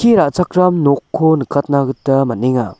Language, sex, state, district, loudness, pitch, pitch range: Garo, male, Meghalaya, West Garo Hills, -14 LUFS, 140 Hz, 135-175 Hz